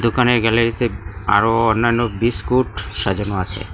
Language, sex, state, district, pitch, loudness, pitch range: Bengali, male, West Bengal, Cooch Behar, 115 Hz, -17 LUFS, 95-120 Hz